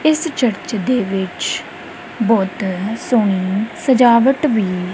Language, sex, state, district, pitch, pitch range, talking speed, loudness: Punjabi, female, Punjab, Kapurthala, 225 Hz, 195-255 Hz, 110 wpm, -17 LUFS